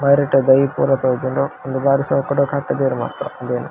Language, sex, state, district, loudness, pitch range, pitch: Tulu, male, Karnataka, Dakshina Kannada, -18 LUFS, 130-140 Hz, 135 Hz